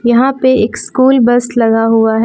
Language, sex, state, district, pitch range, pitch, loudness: Hindi, female, Jharkhand, Palamu, 225-260 Hz, 240 Hz, -11 LUFS